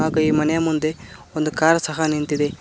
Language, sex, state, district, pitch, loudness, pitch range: Kannada, male, Karnataka, Koppal, 155 Hz, -20 LUFS, 150-160 Hz